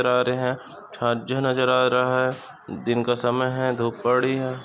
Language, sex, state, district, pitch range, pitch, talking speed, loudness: Hindi, male, Maharashtra, Chandrapur, 120-130 Hz, 125 Hz, 180 wpm, -23 LUFS